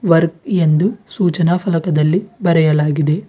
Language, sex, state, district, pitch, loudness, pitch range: Kannada, female, Karnataka, Bidar, 170 Hz, -15 LUFS, 155-185 Hz